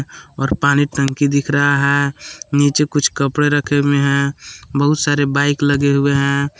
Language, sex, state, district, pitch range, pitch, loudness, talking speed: Hindi, male, Jharkhand, Palamu, 140-145 Hz, 140 Hz, -16 LUFS, 165 wpm